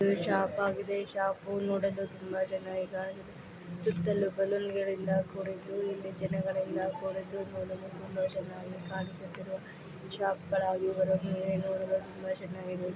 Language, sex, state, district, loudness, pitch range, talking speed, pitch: Kannada, female, Karnataka, Dakshina Kannada, -34 LUFS, 185-195 Hz, 105 wpm, 190 Hz